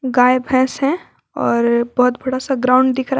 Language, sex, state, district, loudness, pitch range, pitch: Hindi, female, Jharkhand, Garhwa, -16 LUFS, 250-265 Hz, 255 Hz